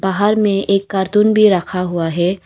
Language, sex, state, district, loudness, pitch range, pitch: Hindi, female, Arunachal Pradesh, Longding, -15 LUFS, 180-205 Hz, 195 Hz